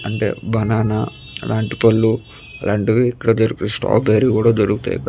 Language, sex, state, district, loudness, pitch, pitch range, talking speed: Telugu, male, Andhra Pradesh, Chittoor, -17 LUFS, 110 Hz, 105-115 Hz, 130 wpm